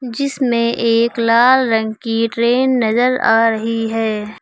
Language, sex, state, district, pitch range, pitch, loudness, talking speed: Hindi, female, Uttar Pradesh, Lucknow, 225-245 Hz, 230 Hz, -15 LUFS, 135 wpm